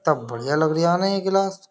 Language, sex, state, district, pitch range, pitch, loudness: Hindi, male, Uttar Pradesh, Jyotiba Phule Nagar, 155-195 Hz, 175 Hz, -21 LUFS